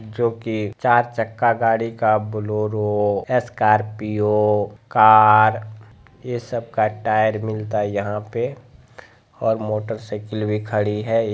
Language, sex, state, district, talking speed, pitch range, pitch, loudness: Hindi, male, Bihar, Jamui, 110 wpm, 105-115 Hz, 110 Hz, -20 LUFS